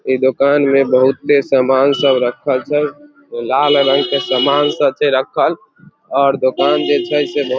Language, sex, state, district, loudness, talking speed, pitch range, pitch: Maithili, male, Bihar, Samastipur, -14 LUFS, 175 wpm, 130-150 Hz, 140 Hz